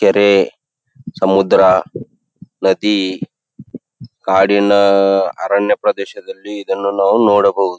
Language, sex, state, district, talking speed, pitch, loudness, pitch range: Kannada, male, Karnataka, Belgaum, 60 wpm, 100 Hz, -14 LUFS, 95-105 Hz